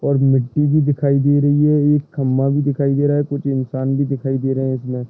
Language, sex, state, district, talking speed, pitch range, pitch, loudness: Hindi, male, Uttar Pradesh, Gorakhpur, 260 wpm, 135-145 Hz, 140 Hz, -17 LUFS